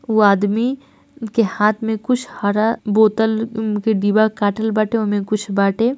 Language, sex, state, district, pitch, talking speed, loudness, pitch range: Hindi, female, Bihar, East Champaran, 220 Hz, 150 wpm, -18 LUFS, 210-225 Hz